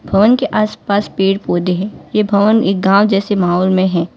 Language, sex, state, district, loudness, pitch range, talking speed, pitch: Hindi, female, Gujarat, Valsad, -14 LUFS, 185-210 Hz, 215 wpm, 195 Hz